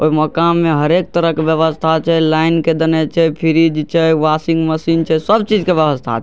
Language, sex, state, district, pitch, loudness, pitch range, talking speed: Maithili, male, Bihar, Darbhanga, 160 Hz, -14 LUFS, 155-165 Hz, 250 wpm